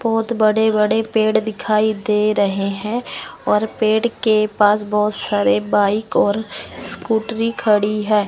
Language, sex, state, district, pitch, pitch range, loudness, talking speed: Hindi, female, Chandigarh, Chandigarh, 215 Hz, 210-220 Hz, -18 LUFS, 135 wpm